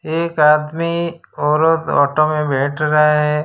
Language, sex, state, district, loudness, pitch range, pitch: Hindi, male, Gujarat, Valsad, -16 LUFS, 150-165 Hz, 155 Hz